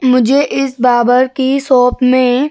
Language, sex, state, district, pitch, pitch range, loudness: Hindi, female, Uttar Pradesh, Jyotiba Phule Nagar, 255 Hz, 250-270 Hz, -11 LUFS